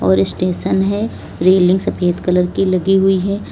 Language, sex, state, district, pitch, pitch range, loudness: Hindi, female, Uttar Pradesh, Lalitpur, 185 Hz, 180-195 Hz, -15 LUFS